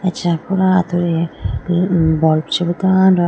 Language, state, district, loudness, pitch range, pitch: Idu Mishmi, Arunachal Pradesh, Lower Dibang Valley, -16 LUFS, 165-185 Hz, 175 Hz